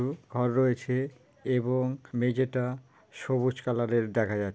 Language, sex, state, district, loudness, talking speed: Bengali, female, West Bengal, Jhargram, -29 LUFS, 120 wpm